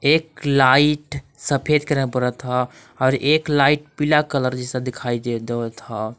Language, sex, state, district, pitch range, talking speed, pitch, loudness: Magahi, male, Jharkhand, Palamu, 125-150 Hz, 155 wpm, 135 Hz, -20 LUFS